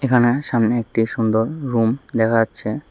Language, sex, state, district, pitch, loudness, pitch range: Bengali, male, Tripura, West Tripura, 115 Hz, -19 LUFS, 115-125 Hz